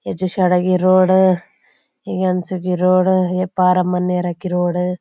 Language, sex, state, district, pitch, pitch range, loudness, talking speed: Garhwali, female, Uttarakhand, Uttarkashi, 180 Hz, 180-185 Hz, -17 LUFS, 165 wpm